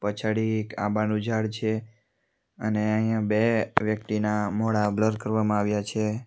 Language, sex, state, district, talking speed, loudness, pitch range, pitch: Gujarati, male, Gujarat, Valsad, 135 wpm, -26 LUFS, 105-110 Hz, 110 Hz